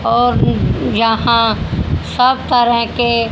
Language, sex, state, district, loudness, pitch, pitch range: Hindi, female, Haryana, Jhajjar, -14 LUFS, 235 Hz, 230-245 Hz